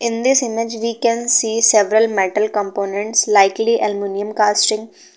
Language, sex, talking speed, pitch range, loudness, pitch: English, female, 140 wpm, 205-230 Hz, -16 LUFS, 220 Hz